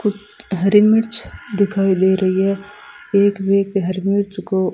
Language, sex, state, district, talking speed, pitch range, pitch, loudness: Hindi, female, Rajasthan, Bikaner, 140 wpm, 190-205 Hz, 200 Hz, -17 LUFS